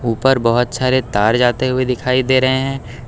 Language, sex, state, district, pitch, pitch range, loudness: Hindi, male, Uttar Pradesh, Lucknow, 125 Hz, 120-130 Hz, -16 LUFS